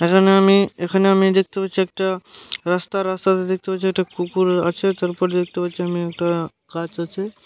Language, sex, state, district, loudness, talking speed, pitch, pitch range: Bengali, male, West Bengal, Malda, -20 LUFS, 155 wpm, 185 Hz, 175-190 Hz